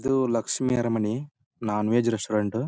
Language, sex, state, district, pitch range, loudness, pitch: Kannada, male, Karnataka, Belgaum, 110-130 Hz, -26 LUFS, 115 Hz